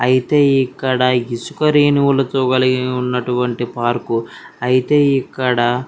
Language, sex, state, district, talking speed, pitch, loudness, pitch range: Telugu, male, Andhra Pradesh, Anantapur, 80 wpm, 130 Hz, -16 LUFS, 125-135 Hz